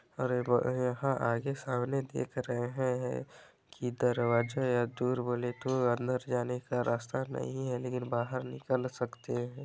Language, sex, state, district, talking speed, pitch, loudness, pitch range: Hindi, male, Chhattisgarh, Balrampur, 160 wpm, 125 Hz, -33 LUFS, 120-130 Hz